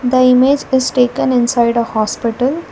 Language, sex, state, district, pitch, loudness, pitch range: English, female, Karnataka, Bangalore, 250 Hz, -14 LUFS, 235-260 Hz